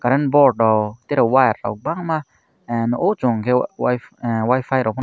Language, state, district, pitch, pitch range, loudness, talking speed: Kokborok, Tripura, Dhalai, 125 Hz, 115-130 Hz, -19 LUFS, 145 wpm